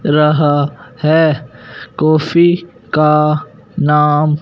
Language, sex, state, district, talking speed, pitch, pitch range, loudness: Hindi, male, Punjab, Fazilka, 70 wpm, 150 Hz, 150-160 Hz, -13 LUFS